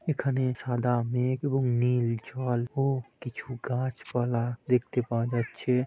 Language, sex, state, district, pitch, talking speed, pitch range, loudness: Bengali, male, West Bengal, Purulia, 125 Hz, 120 wpm, 120-130 Hz, -29 LUFS